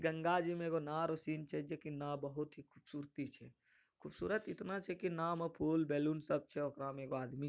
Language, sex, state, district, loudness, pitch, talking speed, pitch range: Angika, male, Bihar, Bhagalpur, -41 LUFS, 155 Hz, 210 wpm, 145-165 Hz